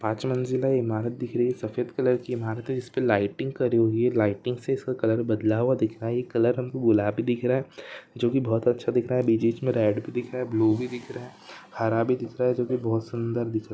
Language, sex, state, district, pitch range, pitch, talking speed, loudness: Hindi, male, Chhattisgarh, Rajnandgaon, 115-125 Hz, 120 Hz, 275 wpm, -26 LUFS